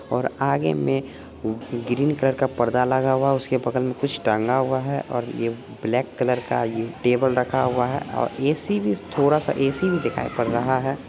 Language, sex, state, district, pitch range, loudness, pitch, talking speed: Hindi, male, Bihar, Supaul, 120-135 Hz, -23 LUFS, 125 Hz, 190 wpm